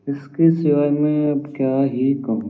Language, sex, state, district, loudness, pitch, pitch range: Hindi, male, Uttar Pradesh, Varanasi, -19 LUFS, 140 Hz, 135-150 Hz